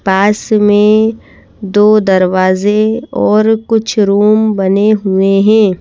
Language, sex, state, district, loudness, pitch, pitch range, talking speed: Hindi, female, Madhya Pradesh, Bhopal, -10 LUFS, 210 Hz, 195-215 Hz, 105 wpm